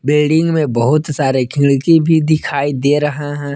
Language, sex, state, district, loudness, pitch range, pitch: Hindi, male, Jharkhand, Palamu, -14 LUFS, 140-155 Hz, 145 Hz